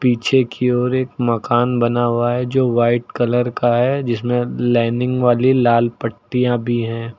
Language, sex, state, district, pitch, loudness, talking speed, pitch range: Hindi, male, Uttar Pradesh, Lucknow, 120 Hz, -17 LUFS, 165 wpm, 120-125 Hz